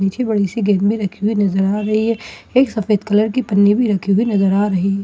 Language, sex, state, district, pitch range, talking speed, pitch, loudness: Hindi, female, Bihar, Katihar, 195-215 Hz, 275 wpm, 205 Hz, -16 LUFS